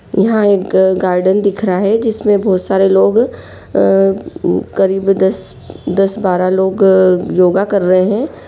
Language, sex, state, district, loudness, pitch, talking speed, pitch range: Hindi, female, Jharkhand, Sahebganj, -13 LUFS, 190 Hz, 125 wpm, 185-200 Hz